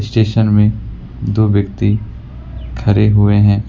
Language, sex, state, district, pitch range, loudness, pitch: Hindi, male, West Bengal, Alipurduar, 105-110 Hz, -14 LUFS, 105 Hz